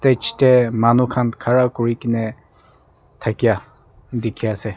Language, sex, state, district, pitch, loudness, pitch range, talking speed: Nagamese, male, Nagaland, Dimapur, 120 Hz, -18 LUFS, 115-125 Hz, 140 wpm